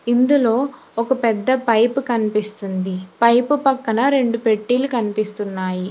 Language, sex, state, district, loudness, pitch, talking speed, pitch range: Telugu, female, Telangana, Hyderabad, -19 LUFS, 230 Hz, 100 wpm, 210-260 Hz